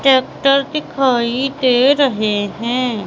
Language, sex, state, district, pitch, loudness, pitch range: Hindi, female, Madhya Pradesh, Katni, 255 Hz, -15 LUFS, 235-275 Hz